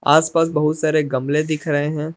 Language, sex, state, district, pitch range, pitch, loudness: Hindi, male, Jharkhand, Palamu, 150-155 Hz, 155 Hz, -19 LUFS